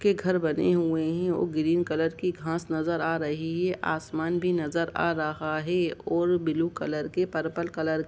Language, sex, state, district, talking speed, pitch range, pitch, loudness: Hindi, male, Jharkhand, Sahebganj, 200 wpm, 160-175 Hz, 165 Hz, -28 LUFS